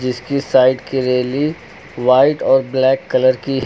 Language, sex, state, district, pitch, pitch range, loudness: Hindi, male, Uttar Pradesh, Lucknow, 130 Hz, 125-135 Hz, -15 LUFS